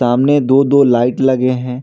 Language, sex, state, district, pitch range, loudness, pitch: Hindi, male, Jharkhand, Ranchi, 125-135 Hz, -12 LUFS, 130 Hz